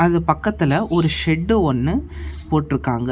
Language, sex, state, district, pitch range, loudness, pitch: Tamil, male, Tamil Nadu, Namakkal, 130-170 Hz, -19 LUFS, 155 Hz